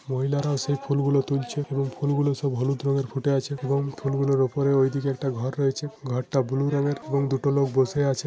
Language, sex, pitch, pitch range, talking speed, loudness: Bengali, male, 140 Hz, 135-140 Hz, 255 wpm, -25 LUFS